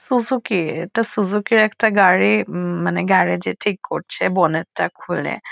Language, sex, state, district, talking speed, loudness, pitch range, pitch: Bengali, female, West Bengal, Kolkata, 150 wpm, -18 LUFS, 180-220 Hz, 200 Hz